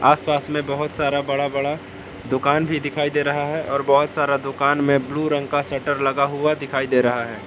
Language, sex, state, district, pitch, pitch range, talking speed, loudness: Hindi, male, Jharkhand, Palamu, 140 Hz, 140-145 Hz, 215 wpm, -21 LUFS